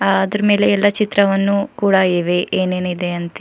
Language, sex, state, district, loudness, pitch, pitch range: Kannada, female, Karnataka, Bidar, -16 LUFS, 195 Hz, 180-205 Hz